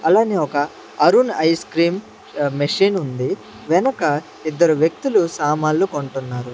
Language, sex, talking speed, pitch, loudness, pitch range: Telugu, male, 120 wpm, 155 Hz, -19 LUFS, 145-170 Hz